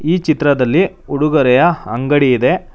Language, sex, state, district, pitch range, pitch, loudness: Kannada, male, Karnataka, Bangalore, 135-175 Hz, 150 Hz, -14 LUFS